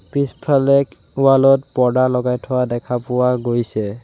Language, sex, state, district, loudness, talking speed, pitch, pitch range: Assamese, male, Assam, Sonitpur, -17 LUFS, 135 wpm, 125 Hz, 120-135 Hz